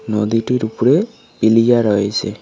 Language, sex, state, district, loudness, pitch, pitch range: Bengali, male, West Bengal, Cooch Behar, -15 LUFS, 115 Hz, 110-120 Hz